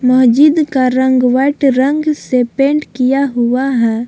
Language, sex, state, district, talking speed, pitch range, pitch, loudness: Hindi, female, Jharkhand, Palamu, 145 wpm, 250-280 Hz, 260 Hz, -12 LUFS